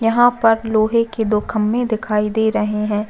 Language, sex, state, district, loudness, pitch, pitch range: Hindi, female, Chhattisgarh, Bastar, -17 LUFS, 220 Hz, 210-225 Hz